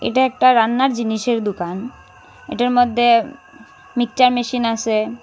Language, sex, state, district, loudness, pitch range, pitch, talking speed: Bengali, female, Assam, Hailakandi, -17 LUFS, 225-250 Hz, 240 Hz, 125 wpm